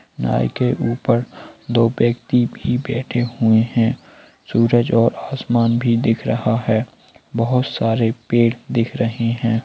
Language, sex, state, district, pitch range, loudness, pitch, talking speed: Hindi, male, Bihar, Araria, 115-120 Hz, -18 LUFS, 115 Hz, 135 wpm